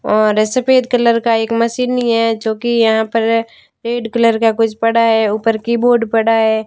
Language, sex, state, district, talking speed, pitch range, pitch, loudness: Hindi, female, Rajasthan, Barmer, 200 wpm, 225-235 Hz, 230 Hz, -14 LUFS